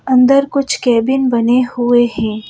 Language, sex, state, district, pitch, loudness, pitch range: Hindi, female, Madhya Pradesh, Bhopal, 250 Hz, -13 LUFS, 235-265 Hz